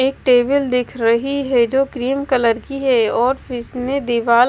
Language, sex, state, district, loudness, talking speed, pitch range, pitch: Hindi, female, Bihar, West Champaran, -17 LUFS, 185 wpm, 240-270 Hz, 250 Hz